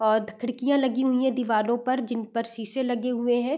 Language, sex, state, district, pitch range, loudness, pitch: Hindi, female, Bihar, East Champaran, 230-255 Hz, -26 LUFS, 245 Hz